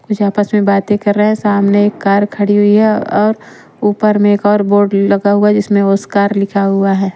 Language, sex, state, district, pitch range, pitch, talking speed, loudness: Hindi, female, Haryana, Rohtak, 200-210 Hz, 205 Hz, 225 wpm, -12 LUFS